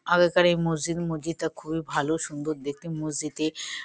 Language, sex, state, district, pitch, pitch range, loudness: Bengali, female, West Bengal, Kolkata, 160 Hz, 155-170 Hz, -27 LUFS